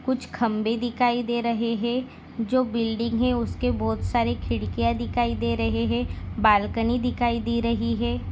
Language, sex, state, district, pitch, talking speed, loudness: Hindi, female, Maharashtra, Dhule, 230 Hz, 160 wpm, -25 LUFS